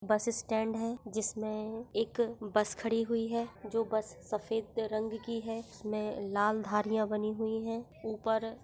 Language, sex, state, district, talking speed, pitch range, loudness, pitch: Hindi, female, Jharkhand, Sahebganj, 155 wpm, 215-225 Hz, -34 LUFS, 220 Hz